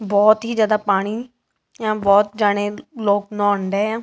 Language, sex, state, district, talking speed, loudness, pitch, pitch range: Punjabi, female, Punjab, Kapurthala, 150 wpm, -19 LUFS, 210 Hz, 205-215 Hz